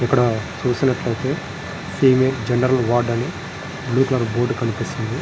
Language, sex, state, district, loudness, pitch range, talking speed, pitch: Telugu, male, Andhra Pradesh, Srikakulam, -20 LUFS, 115-130 Hz, 125 wpm, 120 Hz